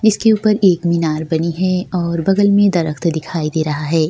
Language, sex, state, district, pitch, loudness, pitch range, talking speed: Hindi, female, Bihar, Kishanganj, 170 Hz, -16 LUFS, 160-195 Hz, 205 wpm